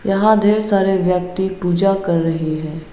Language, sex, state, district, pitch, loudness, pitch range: Hindi, female, Arunachal Pradesh, Lower Dibang Valley, 190 Hz, -17 LUFS, 165-195 Hz